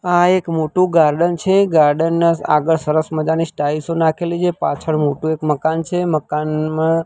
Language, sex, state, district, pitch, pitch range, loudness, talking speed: Gujarati, male, Gujarat, Gandhinagar, 160 Hz, 155-170 Hz, -17 LUFS, 155 wpm